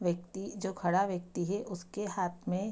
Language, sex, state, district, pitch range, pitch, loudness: Hindi, female, Bihar, Saharsa, 175-195 Hz, 185 Hz, -35 LUFS